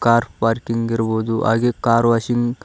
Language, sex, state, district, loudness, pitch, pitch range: Kannada, male, Karnataka, Koppal, -18 LUFS, 115 Hz, 115-120 Hz